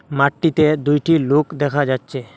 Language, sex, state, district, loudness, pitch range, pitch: Bengali, male, Assam, Hailakandi, -17 LUFS, 140-155 Hz, 145 Hz